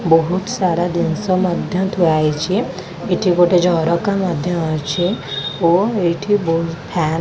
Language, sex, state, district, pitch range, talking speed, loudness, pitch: Odia, female, Odisha, Khordha, 165-185 Hz, 125 wpm, -17 LUFS, 175 Hz